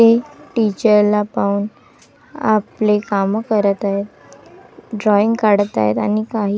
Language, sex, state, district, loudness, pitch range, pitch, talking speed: Marathi, female, Maharashtra, Gondia, -17 LUFS, 200-220 Hz, 210 Hz, 120 wpm